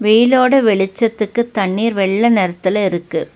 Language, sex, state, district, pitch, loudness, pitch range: Tamil, female, Tamil Nadu, Nilgiris, 215 Hz, -15 LUFS, 190-230 Hz